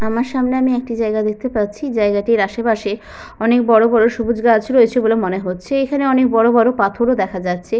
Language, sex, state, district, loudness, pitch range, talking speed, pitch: Bengali, female, West Bengal, Paschim Medinipur, -16 LUFS, 210-245 Hz, 190 wpm, 230 Hz